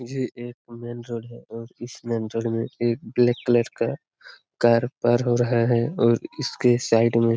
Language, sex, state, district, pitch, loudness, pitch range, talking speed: Hindi, male, Bihar, Lakhisarai, 120 Hz, -23 LUFS, 115-120 Hz, 185 wpm